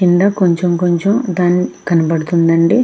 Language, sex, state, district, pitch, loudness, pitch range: Telugu, female, Andhra Pradesh, Krishna, 175 Hz, -14 LUFS, 170-185 Hz